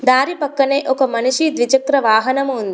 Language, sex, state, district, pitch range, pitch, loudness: Telugu, female, Telangana, Komaram Bheem, 255-275 Hz, 265 Hz, -16 LUFS